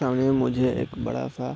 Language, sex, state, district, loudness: Hindi, male, Chhattisgarh, Raigarh, -25 LUFS